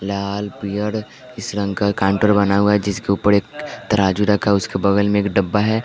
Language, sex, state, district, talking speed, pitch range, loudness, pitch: Hindi, male, Bihar, West Champaran, 205 wpm, 100-105 Hz, -18 LUFS, 100 Hz